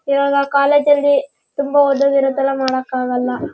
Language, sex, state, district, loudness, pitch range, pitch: Kannada, male, Karnataka, Shimoga, -15 LUFS, 265-285 Hz, 280 Hz